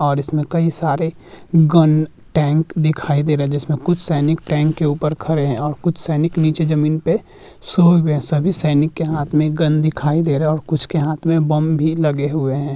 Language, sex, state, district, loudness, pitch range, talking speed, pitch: Hindi, male, Bihar, Vaishali, -17 LUFS, 150-160 Hz, 220 wpm, 155 Hz